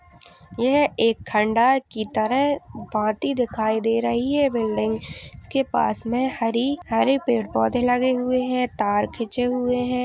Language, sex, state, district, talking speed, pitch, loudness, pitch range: Hindi, female, Uttar Pradesh, Etah, 155 wpm, 245 Hz, -22 LUFS, 220-255 Hz